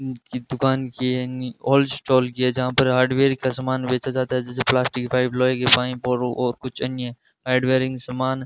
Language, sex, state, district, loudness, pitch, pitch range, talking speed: Hindi, male, Rajasthan, Bikaner, -21 LUFS, 130 Hz, 125-130 Hz, 205 wpm